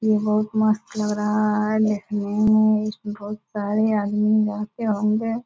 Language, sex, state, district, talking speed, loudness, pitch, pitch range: Hindi, female, Bihar, Purnia, 175 wpm, -22 LUFS, 215 Hz, 210-215 Hz